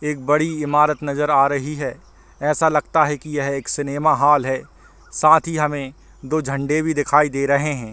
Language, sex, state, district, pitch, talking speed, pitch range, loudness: Hindi, male, Chhattisgarh, Balrampur, 150 Hz, 205 wpm, 140-150 Hz, -19 LUFS